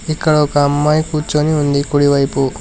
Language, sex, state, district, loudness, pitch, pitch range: Telugu, male, Telangana, Hyderabad, -14 LUFS, 145 Hz, 140-150 Hz